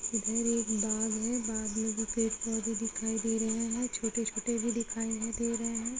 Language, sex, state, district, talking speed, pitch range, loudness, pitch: Hindi, female, Bihar, Gopalganj, 190 wpm, 220-230 Hz, -31 LUFS, 225 Hz